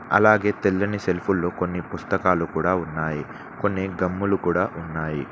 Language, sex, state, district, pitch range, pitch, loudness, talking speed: Telugu, male, Telangana, Mahabubabad, 85-100 Hz, 90 Hz, -23 LUFS, 125 wpm